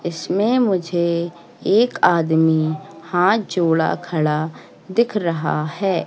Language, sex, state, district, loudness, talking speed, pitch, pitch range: Hindi, female, Madhya Pradesh, Katni, -19 LUFS, 100 wpm, 170 Hz, 160-190 Hz